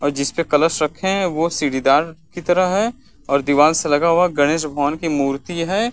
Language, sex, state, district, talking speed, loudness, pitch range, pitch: Hindi, male, Uttar Pradesh, Varanasi, 215 wpm, -18 LUFS, 145-175 Hz, 160 Hz